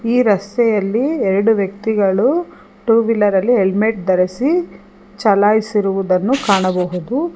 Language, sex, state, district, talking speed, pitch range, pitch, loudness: Kannada, female, Karnataka, Bangalore, 90 wpm, 195-235 Hz, 210 Hz, -16 LUFS